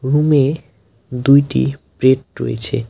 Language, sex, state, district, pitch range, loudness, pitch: Bengali, male, West Bengal, Alipurduar, 110-140 Hz, -16 LUFS, 130 Hz